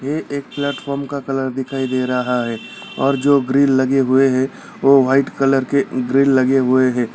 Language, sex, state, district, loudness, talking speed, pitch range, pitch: Hindi, male, Bihar, Gaya, -17 LUFS, 200 wpm, 130-140 Hz, 135 Hz